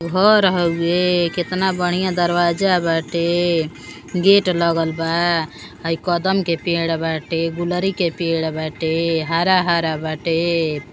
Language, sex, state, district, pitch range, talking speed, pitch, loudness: Bhojpuri, female, Uttar Pradesh, Deoria, 165-180 Hz, 110 wpm, 170 Hz, -18 LUFS